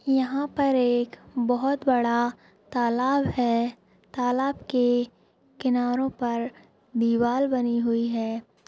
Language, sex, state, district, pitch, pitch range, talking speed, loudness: Hindi, female, Maharashtra, Sindhudurg, 245 Hz, 235-260 Hz, 105 wpm, -25 LUFS